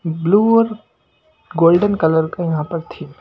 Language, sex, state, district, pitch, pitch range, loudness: Hindi, male, Punjab, Pathankot, 170 Hz, 165-215 Hz, -16 LUFS